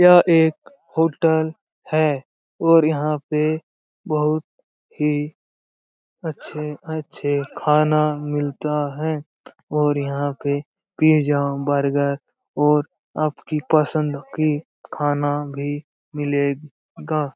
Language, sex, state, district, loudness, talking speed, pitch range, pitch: Hindi, male, Bihar, Jamui, -21 LUFS, 85 wpm, 145-155 Hz, 150 Hz